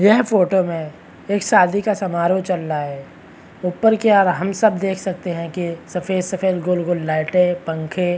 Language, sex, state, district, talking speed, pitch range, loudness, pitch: Hindi, male, Chhattisgarh, Bastar, 185 wpm, 170-195 Hz, -19 LUFS, 180 Hz